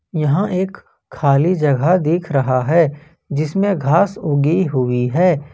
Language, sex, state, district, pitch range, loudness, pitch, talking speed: Hindi, male, Jharkhand, Ranchi, 140-180 Hz, -17 LUFS, 155 Hz, 130 wpm